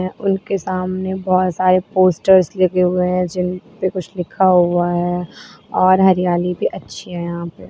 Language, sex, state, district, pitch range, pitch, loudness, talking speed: Hindi, female, Uttar Pradesh, Lalitpur, 180-185 Hz, 185 Hz, -17 LUFS, 165 wpm